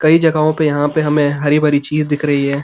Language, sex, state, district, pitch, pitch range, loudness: Hindi, male, Uttarakhand, Uttarkashi, 150 Hz, 145-155 Hz, -15 LUFS